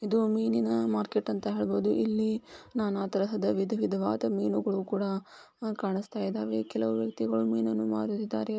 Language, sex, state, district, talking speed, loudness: Kannada, female, Karnataka, Belgaum, 140 wpm, -30 LUFS